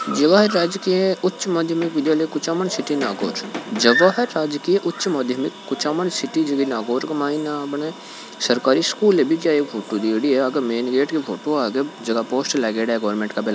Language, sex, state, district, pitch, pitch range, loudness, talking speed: Hindi, male, Rajasthan, Nagaur, 150 Hz, 125-170 Hz, -20 LUFS, 150 wpm